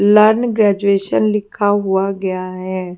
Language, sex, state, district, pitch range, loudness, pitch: Hindi, female, Haryana, Jhajjar, 185-210 Hz, -16 LUFS, 200 Hz